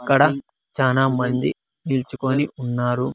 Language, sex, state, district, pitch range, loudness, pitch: Telugu, male, Andhra Pradesh, Sri Satya Sai, 125-140 Hz, -21 LUFS, 130 Hz